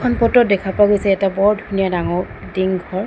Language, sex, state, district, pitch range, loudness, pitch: Assamese, female, Assam, Sonitpur, 190-205 Hz, -17 LUFS, 195 Hz